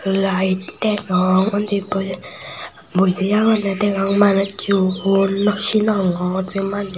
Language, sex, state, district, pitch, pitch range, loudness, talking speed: Chakma, male, Tripura, Unakoti, 195 Hz, 190-205 Hz, -17 LUFS, 105 wpm